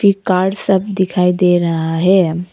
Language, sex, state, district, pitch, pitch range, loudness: Hindi, female, Arunachal Pradesh, Papum Pare, 185 Hz, 175-190 Hz, -14 LUFS